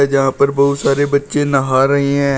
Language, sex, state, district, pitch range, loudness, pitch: Hindi, male, Uttar Pradesh, Shamli, 135-140 Hz, -14 LUFS, 140 Hz